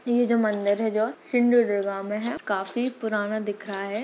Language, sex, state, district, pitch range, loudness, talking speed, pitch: Hindi, female, Maharashtra, Sindhudurg, 205-240 Hz, -25 LUFS, 195 wpm, 215 Hz